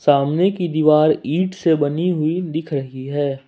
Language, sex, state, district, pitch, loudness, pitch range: Hindi, male, Jharkhand, Ranchi, 155 Hz, -18 LUFS, 145-175 Hz